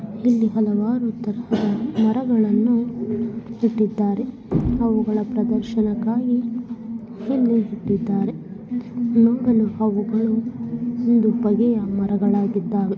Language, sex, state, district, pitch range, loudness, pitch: Kannada, female, Karnataka, Mysore, 215-235 Hz, -21 LUFS, 225 Hz